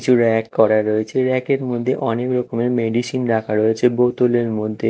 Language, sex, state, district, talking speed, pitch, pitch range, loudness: Bengali, male, Odisha, Khordha, 160 wpm, 120 Hz, 110-125 Hz, -18 LUFS